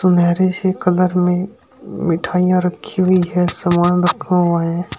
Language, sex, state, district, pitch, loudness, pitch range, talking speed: Hindi, male, Uttar Pradesh, Shamli, 180 Hz, -16 LUFS, 175-185 Hz, 145 wpm